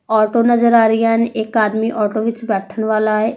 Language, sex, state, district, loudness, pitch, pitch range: Punjabi, female, Punjab, Fazilka, -16 LUFS, 220 Hz, 215-230 Hz